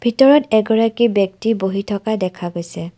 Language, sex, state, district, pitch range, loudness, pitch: Assamese, female, Assam, Kamrup Metropolitan, 190-225 Hz, -17 LUFS, 215 Hz